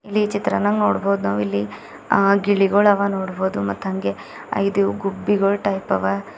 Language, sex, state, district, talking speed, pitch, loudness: Kannada, male, Karnataka, Bidar, 130 wpm, 190 Hz, -20 LUFS